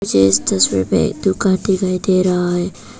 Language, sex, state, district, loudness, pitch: Hindi, female, Arunachal Pradesh, Papum Pare, -16 LUFS, 185 Hz